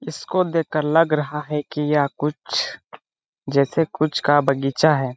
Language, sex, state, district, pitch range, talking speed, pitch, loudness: Hindi, male, Chhattisgarh, Balrampur, 140-155 Hz, 150 wpm, 150 Hz, -21 LUFS